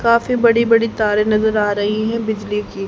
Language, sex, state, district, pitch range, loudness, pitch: Hindi, female, Haryana, Jhajjar, 210-230 Hz, -16 LUFS, 215 Hz